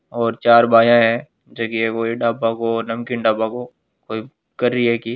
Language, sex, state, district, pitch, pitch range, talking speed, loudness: Hindi, male, Rajasthan, Nagaur, 115 Hz, 115-120 Hz, 195 wpm, -17 LUFS